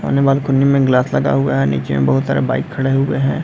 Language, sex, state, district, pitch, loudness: Hindi, male, Bihar, Madhepura, 130 Hz, -16 LUFS